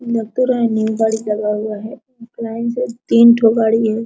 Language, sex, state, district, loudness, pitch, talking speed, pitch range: Hindi, female, Bihar, Araria, -16 LUFS, 230 Hz, 190 wpm, 220-235 Hz